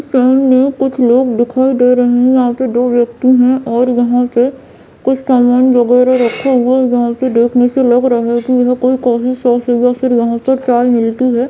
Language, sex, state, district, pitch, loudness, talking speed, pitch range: Hindi, female, Bihar, Bhagalpur, 250 Hz, -11 LUFS, 215 wpm, 240-255 Hz